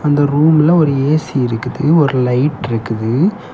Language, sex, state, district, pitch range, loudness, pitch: Tamil, male, Tamil Nadu, Kanyakumari, 125-155 Hz, -14 LUFS, 145 Hz